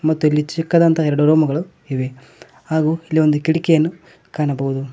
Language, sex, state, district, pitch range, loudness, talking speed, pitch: Kannada, male, Karnataka, Koppal, 150-160 Hz, -18 LUFS, 135 wpm, 155 Hz